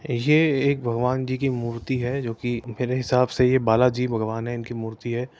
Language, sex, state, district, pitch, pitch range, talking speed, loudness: Hindi, male, Uttar Pradesh, Etah, 125 Hz, 120-130 Hz, 200 wpm, -23 LUFS